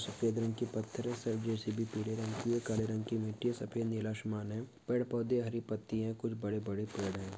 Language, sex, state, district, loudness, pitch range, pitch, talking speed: Hindi, male, Maharashtra, Dhule, -37 LUFS, 105-115 Hz, 110 Hz, 220 wpm